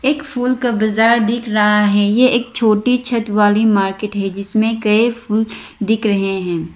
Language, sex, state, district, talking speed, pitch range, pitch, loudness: Hindi, female, Arunachal Pradesh, Lower Dibang Valley, 180 wpm, 205-235 Hz, 220 Hz, -15 LUFS